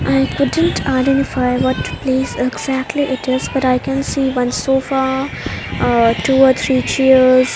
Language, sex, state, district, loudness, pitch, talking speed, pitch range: English, female, Haryana, Rohtak, -15 LUFS, 260 Hz, 150 wpm, 255-270 Hz